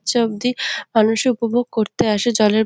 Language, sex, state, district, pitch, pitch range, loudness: Bengali, female, West Bengal, Kolkata, 225 Hz, 215-240 Hz, -18 LUFS